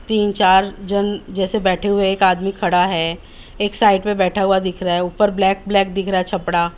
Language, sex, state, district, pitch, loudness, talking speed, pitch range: Hindi, female, Maharashtra, Mumbai Suburban, 195 Hz, -17 LUFS, 230 wpm, 185-200 Hz